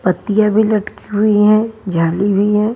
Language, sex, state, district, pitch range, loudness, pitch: Hindi, female, Bihar, Patna, 200-215 Hz, -14 LUFS, 210 Hz